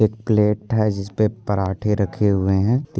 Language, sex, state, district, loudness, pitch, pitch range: Hindi, male, Bihar, Purnia, -20 LUFS, 105 Hz, 100-110 Hz